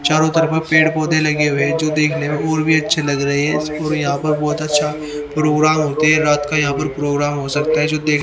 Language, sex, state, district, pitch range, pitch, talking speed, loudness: Hindi, male, Haryana, Rohtak, 145-155 Hz, 150 Hz, 240 wpm, -16 LUFS